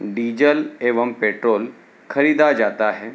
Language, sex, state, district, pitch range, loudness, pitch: Hindi, male, Uttar Pradesh, Hamirpur, 105-145 Hz, -18 LUFS, 115 Hz